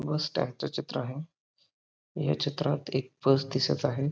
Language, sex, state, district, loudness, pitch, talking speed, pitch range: Marathi, male, Maharashtra, Pune, -30 LUFS, 140 Hz, 160 wpm, 130-145 Hz